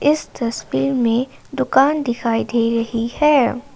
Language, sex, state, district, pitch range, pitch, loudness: Hindi, female, Assam, Kamrup Metropolitan, 230-270 Hz, 240 Hz, -18 LUFS